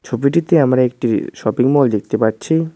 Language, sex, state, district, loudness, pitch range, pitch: Bengali, male, West Bengal, Cooch Behar, -16 LUFS, 110-160 Hz, 130 Hz